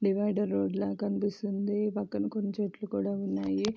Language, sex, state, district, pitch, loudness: Telugu, female, Andhra Pradesh, Srikakulam, 200 Hz, -31 LUFS